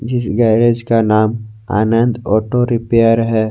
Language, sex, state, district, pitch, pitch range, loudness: Hindi, male, Jharkhand, Garhwa, 115 Hz, 110-120 Hz, -14 LUFS